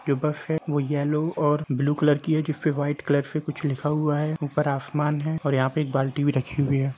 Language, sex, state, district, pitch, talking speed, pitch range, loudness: Hindi, male, Jharkhand, Jamtara, 150 Hz, 260 wpm, 140-150 Hz, -25 LUFS